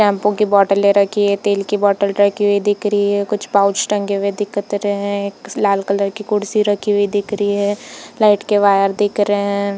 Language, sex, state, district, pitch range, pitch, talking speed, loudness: Hindi, female, Chhattisgarh, Bilaspur, 200-205 Hz, 205 Hz, 215 wpm, -16 LUFS